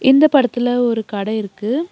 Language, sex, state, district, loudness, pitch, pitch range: Tamil, female, Tamil Nadu, Nilgiris, -17 LUFS, 245 Hz, 220-270 Hz